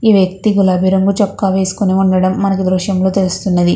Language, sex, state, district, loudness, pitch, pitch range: Telugu, female, Andhra Pradesh, Krishna, -13 LUFS, 190 Hz, 185-195 Hz